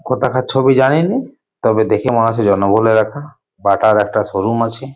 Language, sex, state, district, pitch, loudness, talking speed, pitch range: Bengali, male, West Bengal, Paschim Medinipur, 115 Hz, -14 LUFS, 170 wpm, 105-135 Hz